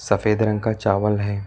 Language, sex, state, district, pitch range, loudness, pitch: Hindi, male, Karnataka, Bangalore, 100-110 Hz, -21 LUFS, 105 Hz